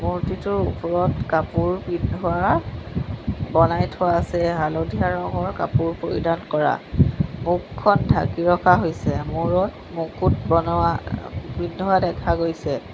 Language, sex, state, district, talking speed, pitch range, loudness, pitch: Assamese, female, Assam, Sonitpur, 105 wpm, 125-175 Hz, -22 LUFS, 165 Hz